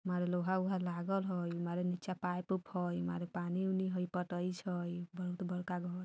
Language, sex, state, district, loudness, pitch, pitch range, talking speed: Bajjika, female, Bihar, Vaishali, -38 LUFS, 180 Hz, 175-185 Hz, 190 wpm